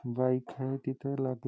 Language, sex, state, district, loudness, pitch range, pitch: Marathi, male, Maharashtra, Nagpur, -33 LUFS, 130-135 Hz, 130 Hz